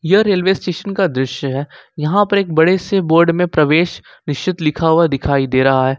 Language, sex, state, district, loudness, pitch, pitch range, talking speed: Hindi, male, Jharkhand, Ranchi, -15 LUFS, 165 Hz, 140-190 Hz, 210 wpm